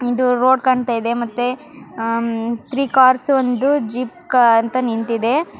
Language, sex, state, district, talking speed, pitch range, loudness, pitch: Kannada, female, Karnataka, Mysore, 140 wpm, 235-260 Hz, -17 LUFS, 250 Hz